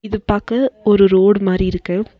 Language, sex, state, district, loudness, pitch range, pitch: Tamil, female, Tamil Nadu, Nilgiris, -15 LUFS, 190-215 Hz, 205 Hz